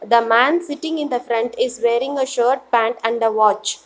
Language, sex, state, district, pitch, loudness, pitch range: English, female, Telangana, Hyderabad, 240 Hz, -18 LUFS, 230-270 Hz